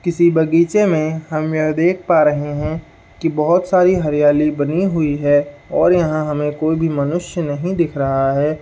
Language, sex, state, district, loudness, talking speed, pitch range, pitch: Hindi, male, Bihar, Saharsa, -16 LUFS, 180 wpm, 150-170 Hz, 155 Hz